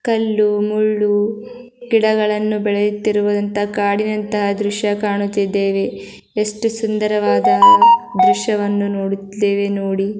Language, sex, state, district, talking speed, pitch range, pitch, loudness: Kannada, female, Karnataka, Gulbarga, 70 wpm, 205-215 Hz, 210 Hz, -16 LUFS